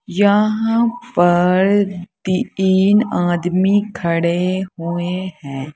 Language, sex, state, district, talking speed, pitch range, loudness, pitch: Hindi, female, Uttar Pradesh, Saharanpur, 75 wpm, 175-205 Hz, -17 LUFS, 185 Hz